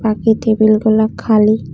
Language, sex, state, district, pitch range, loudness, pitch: Bengali, female, Tripura, West Tripura, 215-220 Hz, -13 LUFS, 220 Hz